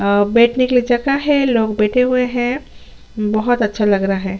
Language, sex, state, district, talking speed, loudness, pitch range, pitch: Hindi, female, Chhattisgarh, Sukma, 205 wpm, -16 LUFS, 210-250 Hz, 235 Hz